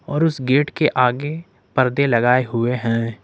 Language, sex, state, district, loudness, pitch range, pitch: Hindi, male, Jharkhand, Ranchi, -19 LUFS, 120-145 Hz, 130 Hz